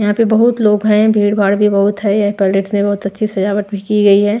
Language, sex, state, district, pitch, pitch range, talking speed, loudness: Hindi, female, Punjab, Pathankot, 205 Hz, 200-210 Hz, 260 wpm, -13 LUFS